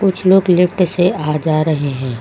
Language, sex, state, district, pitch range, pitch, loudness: Hindi, female, Uttar Pradesh, Lucknow, 150-185 Hz, 175 Hz, -15 LUFS